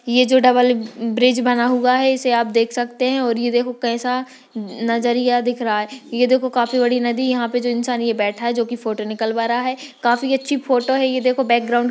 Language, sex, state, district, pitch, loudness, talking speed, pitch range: Hindi, female, Uttarakhand, Tehri Garhwal, 245 Hz, -18 LUFS, 230 wpm, 235-255 Hz